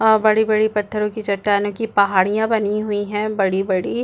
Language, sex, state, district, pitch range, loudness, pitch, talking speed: Hindi, female, Chhattisgarh, Bastar, 200-220 Hz, -19 LUFS, 210 Hz, 165 wpm